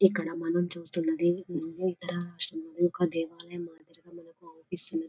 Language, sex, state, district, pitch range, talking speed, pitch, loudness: Telugu, female, Telangana, Nalgonda, 165-175 Hz, 105 wpm, 170 Hz, -31 LUFS